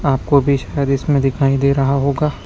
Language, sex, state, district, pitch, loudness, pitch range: Hindi, male, Chhattisgarh, Raipur, 140 Hz, -16 LUFS, 135-140 Hz